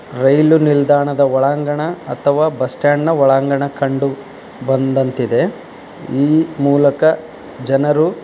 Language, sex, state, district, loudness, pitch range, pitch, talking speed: Kannada, male, Karnataka, Dharwad, -15 LUFS, 135-150 Hz, 140 Hz, 100 wpm